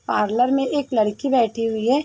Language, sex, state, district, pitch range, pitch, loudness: Hindi, female, Uttar Pradesh, Varanasi, 225-270 Hz, 245 Hz, -20 LUFS